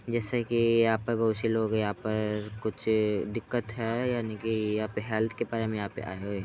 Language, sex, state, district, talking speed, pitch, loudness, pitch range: Hindi, male, Uttar Pradesh, Hamirpur, 240 wpm, 110 Hz, -29 LUFS, 105-115 Hz